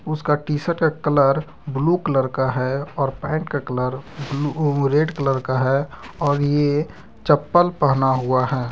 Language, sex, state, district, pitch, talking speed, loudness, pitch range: Hindi, male, Jharkhand, Deoghar, 145 Hz, 165 wpm, -20 LUFS, 135-150 Hz